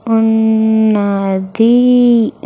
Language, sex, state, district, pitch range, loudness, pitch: Telugu, female, Andhra Pradesh, Sri Satya Sai, 215-230 Hz, -11 LUFS, 220 Hz